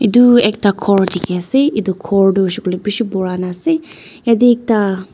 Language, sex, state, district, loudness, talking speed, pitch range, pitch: Nagamese, female, Nagaland, Dimapur, -14 LUFS, 165 wpm, 190-235 Hz, 200 Hz